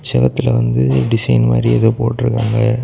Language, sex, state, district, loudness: Tamil, male, Tamil Nadu, Kanyakumari, -14 LUFS